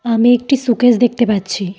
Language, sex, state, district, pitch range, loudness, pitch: Bengali, female, Tripura, Dhalai, 210-245 Hz, -14 LUFS, 240 Hz